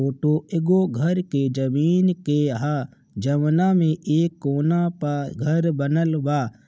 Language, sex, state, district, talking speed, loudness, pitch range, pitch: Bhojpuri, male, Bihar, Gopalganj, 135 wpm, -22 LUFS, 140-170 Hz, 150 Hz